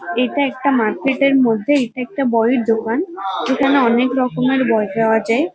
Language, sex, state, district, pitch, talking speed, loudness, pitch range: Bengali, female, West Bengal, Kolkata, 250 Hz, 160 wpm, -17 LUFS, 225-275 Hz